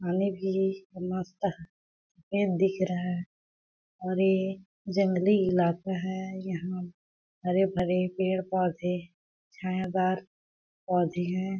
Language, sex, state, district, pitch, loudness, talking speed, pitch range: Hindi, female, Chhattisgarh, Balrampur, 185 Hz, -29 LUFS, 95 wpm, 180-190 Hz